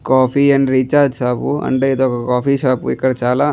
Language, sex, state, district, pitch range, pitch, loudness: Telugu, male, Andhra Pradesh, Chittoor, 130-140 Hz, 130 Hz, -15 LUFS